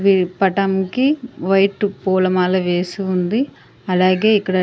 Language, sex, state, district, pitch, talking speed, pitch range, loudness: Telugu, female, Andhra Pradesh, Sri Satya Sai, 190 Hz, 130 wpm, 185-200 Hz, -17 LUFS